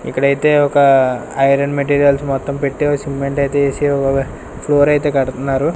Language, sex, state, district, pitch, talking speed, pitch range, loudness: Telugu, male, Andhra Pradesh, Sri Satya Sai, 140 Hz, 135 wpm, 135-145 Hz, -15 LUFS